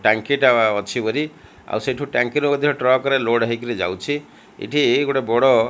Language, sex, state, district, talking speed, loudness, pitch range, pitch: Odia, male, Odisha, Malkangiri, 190 wpm, -19 LUFS, 115-145 Hz, 130 Hz